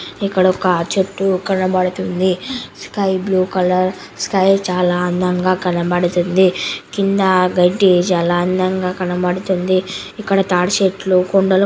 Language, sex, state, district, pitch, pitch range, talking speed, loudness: Telugu, male, Andhra Pradesh, Chittoor, 185 Hz, 180-190 Hz, 75 wpm, -16 LUFS